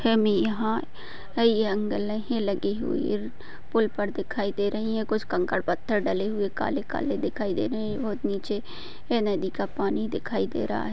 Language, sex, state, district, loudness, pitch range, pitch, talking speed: Hindi, female, Maharashtra, Pune, -27 LUFS, 200-220 Hz, 210 Hz, 170 wpm